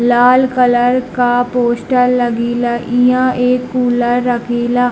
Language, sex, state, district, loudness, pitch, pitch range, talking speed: Hindi, male, Bihar, Darbhanga, -13 LUFS, 245 Hz, 240-250 Hz, 110 wpm